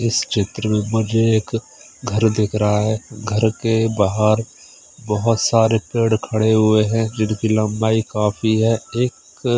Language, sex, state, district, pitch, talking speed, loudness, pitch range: Hindi, male, Odisha, Khordha, 110 Hz, 145 wpm, -18 LUFS, 105-115 Hz